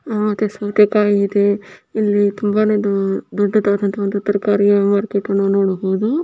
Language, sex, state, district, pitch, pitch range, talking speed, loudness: Kannada, female, Karnataka, Bijapur, 205 Hz, 200-210 Hz, 105 wpm, -17 LUFS